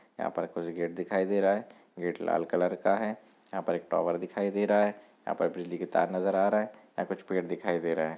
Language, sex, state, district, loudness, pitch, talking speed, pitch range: Hindi, male, Chhattisgarh, Rajnandgaon, -30 LUFS, 95 Hz, 265 wpm, 85-105 Hz